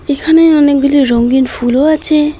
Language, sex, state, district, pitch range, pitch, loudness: Bengali, female, West Bengal, Alipurduar, 265-310 Hz, 285 Hz, -10 LUFS